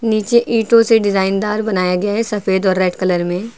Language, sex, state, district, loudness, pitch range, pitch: Hindi, female, Uttar Pradesh, Lucknow, -15 LUFS, 190-225 Hz, 205 Hz